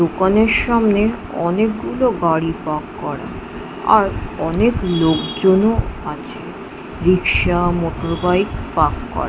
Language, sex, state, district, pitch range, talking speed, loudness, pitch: Bengali, female, West Bengal, Jhargram, 165-215 Hz, 95 wpm, -17 LUFS, 180 Hz